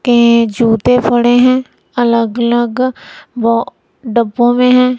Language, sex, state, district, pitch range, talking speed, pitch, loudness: Hindi, female, Punjab, Kapurthala, 235-250 Hz, 130 wpm, 240 Hz, -12 LUFS